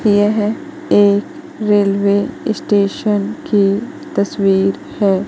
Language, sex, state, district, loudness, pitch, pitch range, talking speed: Hindi, female, Madhya Pradesh, Katni, -16 LUFS, 205 Hz, 200-245 Hz, 80 wpm